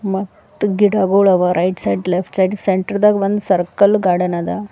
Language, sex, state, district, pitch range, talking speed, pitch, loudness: Kannada, female, Karnataka, Bidar, 180-205 Hz, 150 wpm, 195 Hz, -16 LUFS